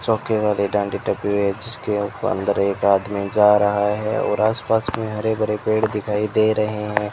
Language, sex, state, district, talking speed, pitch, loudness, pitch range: Hindi, male, Rajasthan, Bikaner, 170 wpm, 105 Hz, -20 LUFS, 100-110 Hz